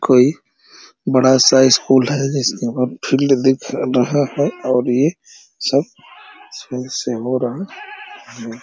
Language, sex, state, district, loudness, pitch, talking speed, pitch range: Hindi, male, Uttar Pradesh, Ghazipur, -16 LUFS, 130 Hz, 95 wpm, 125-140 Hz